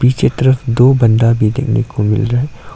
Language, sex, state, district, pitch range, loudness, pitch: Hindi, male, Arunachal Pradesh, Longding, 115-130 Hz, -13 LUFS, 120 Hz